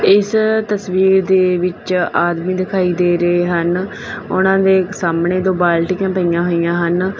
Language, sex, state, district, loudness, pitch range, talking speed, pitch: Punjabi, female, Punjab, Fazilka, -15 LUFS, 175-190 Hz, 140 wpm, 185 Hz